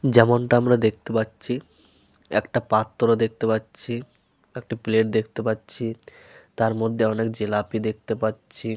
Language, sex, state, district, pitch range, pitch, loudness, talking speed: Bengali, male, Jharkhand, Sahebganj, 110-120 Hz, 110 Hz, -23 LUFS, 125 wpm